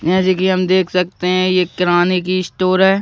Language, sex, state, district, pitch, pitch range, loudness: Hindi, male, Madhya Pradesh, Bhopal, 185 Hz, 180-185 Hz, -15 LUFS